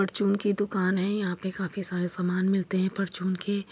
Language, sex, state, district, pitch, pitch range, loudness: Hindi, female, Uttar Pradesh, Jyotiba Phule Nagar, 190 Hz, 185-200 Hz, -28 LUFS